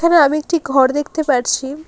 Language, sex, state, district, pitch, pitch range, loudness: Bengali, female, West Bengal, Alipurduar, 290 Hz, 270-315 Hz, -16 LUFS